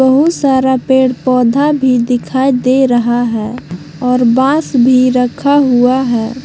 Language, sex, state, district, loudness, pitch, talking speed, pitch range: Hindi, female, Jharkhand, Palamu, -11 LUFS, 255 Hz, 140 wpm, 245-265 Hz